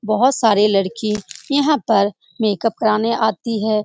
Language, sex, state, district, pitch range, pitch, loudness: Hindi, female, Bihar, Saran, 210-230 Hz, 220 Hz, -18 LUFS